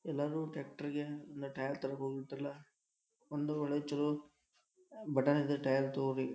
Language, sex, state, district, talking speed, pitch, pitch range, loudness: Kannada, male, Karnataka, Dharwad, 115 wpm, 145 Hz, 135-150 Hz, -38 LUFS